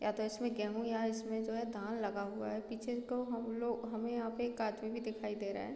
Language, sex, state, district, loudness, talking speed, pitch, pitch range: Hindi, female, Bihar, Muzaffarpur, -39 LUFS, 260 wpm, 225 Hz, 215-235 Hz